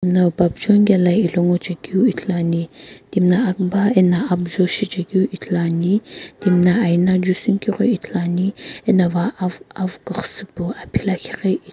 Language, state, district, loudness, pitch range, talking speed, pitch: Sumi, Nagaland, Kohima, -18 LUFS, 175-200 Hz, 130 wpm, 185 Hz